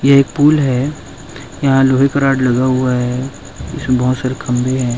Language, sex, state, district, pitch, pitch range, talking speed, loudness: Hindi, male, Chhattisgarh, Rajnandgaon, 130 Hz, 125-140 Hz, 190 wpm, -14 LUFS